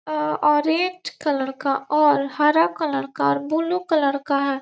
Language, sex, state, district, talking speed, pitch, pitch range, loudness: Hindi, female, Bihar, Gopalganj, 155 wpm, 295 Hz, 275-315 Hz, -21 LUFS